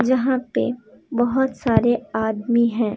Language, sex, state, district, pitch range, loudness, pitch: Hindi, female, Jharkhand, Deoghar, 230-255 Hz, -21 LUFS, 240 Hz